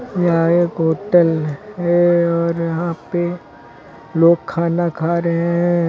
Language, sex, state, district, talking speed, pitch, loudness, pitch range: Hindi, male, Uttar Pradesh, Lucknow, 120 wpm, 170 Hz, -17 LUFS, 165-175 Hz